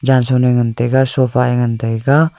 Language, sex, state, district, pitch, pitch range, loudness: Wancho, male, Arunachal Pradesh, Longding, 125 Hz, 120-130 Hz, -14 LUFS